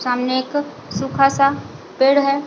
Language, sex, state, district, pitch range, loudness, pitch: Hindi, female, Chhattisgarh, Bilaspur, 260-280 Hz, -18 LUFS, 275 Hz